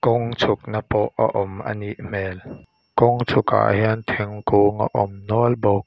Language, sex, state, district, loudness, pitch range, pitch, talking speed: Mizo, male, Mizoram, Aizawl, -21 LUFS, 100-120 Hz, 105 Hz, 165 wpm